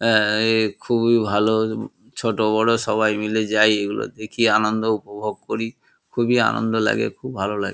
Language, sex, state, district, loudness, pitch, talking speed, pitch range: Bengali, male, West Bengal, Kolkata, -20 LUFS, 110 Hz, 165 wpm, 105-115 Hz